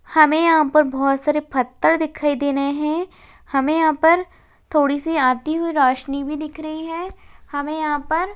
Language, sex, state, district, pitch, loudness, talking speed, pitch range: Hindi, female, Chhattisgarh, Bastar, 305 Hz, -19 LUFS, 185 wpm, 285-320 Hz